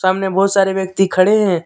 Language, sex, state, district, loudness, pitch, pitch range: Hindi, male, Jharkhand, Deoghar, -15 LUFS, 190 Hz, 185-195 Hz